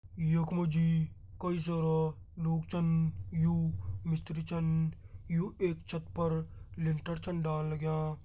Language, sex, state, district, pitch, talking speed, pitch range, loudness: Garhwali, male, Uttarakhand, Tehri Garhwal, 160 Hz, 130 wpm, 155-165 Hz, -34 LUFS